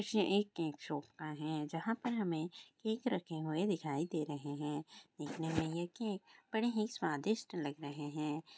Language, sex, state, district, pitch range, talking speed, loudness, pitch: Hindi, female, Bihar, Bhagalpur, 150-205 Hz, 180 wpm, -39 LUFS, 160 Hz